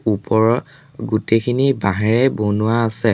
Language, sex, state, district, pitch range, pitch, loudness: Assamese, male, Assam, Sonitpur, 110-125 Hz, 115 Hz, -17 LUFS